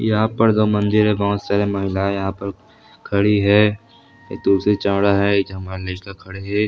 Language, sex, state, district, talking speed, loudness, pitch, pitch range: Chhattisgarhi, male, Chhattisgarh, Sarguja, 170 wpm, -18 LUFS, 100 Hz, 100-105 Hz